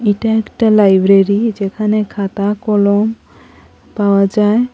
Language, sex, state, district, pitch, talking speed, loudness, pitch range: Bengali, female, Assam, Hailakandi, 210 Hz, 100 wpm, -13 LUFS, 200-220 Hz